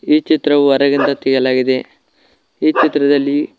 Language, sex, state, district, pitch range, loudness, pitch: Kannada, male, Karnataka, Koppal, 130-145 Hz, -14 LUFS, 140 Hz